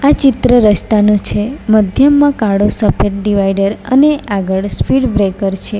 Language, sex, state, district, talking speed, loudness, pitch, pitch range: Gujarati, female, Gujarat, Valsad, 135 wpm, -12 LUFS, 210 Hz, 200-265 Hz